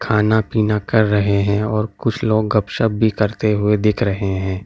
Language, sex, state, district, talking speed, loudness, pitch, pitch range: Hindi, male, Delhi, New Delhi, 205 wpm, -18 LUFS, 105 Hz, 105-110 Hz